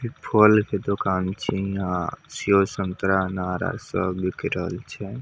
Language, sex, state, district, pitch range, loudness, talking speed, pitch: Maithili, male, Bihar, Samastipur, 95-105 Hz, -24 LUFS, 160 wpm, 95 Hz